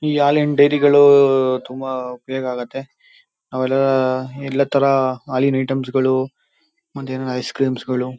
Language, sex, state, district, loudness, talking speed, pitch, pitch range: Kannada, male, Karnataka, Shimoga, -18 LUFS, 110 wpm, 135 Hz, 130-140 Hz